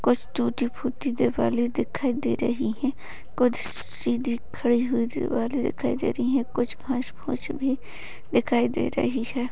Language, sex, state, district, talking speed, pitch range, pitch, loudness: Hindi, female, Uttar Pradesh, Jalaun, 160 wpm, 240-260 Hz, 245 Hz, -26 LUFS